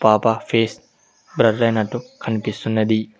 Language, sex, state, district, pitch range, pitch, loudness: Telugu, male, Telangana, Mahabubabad, 110-115 Hz, 110 Hz, -20 LUFS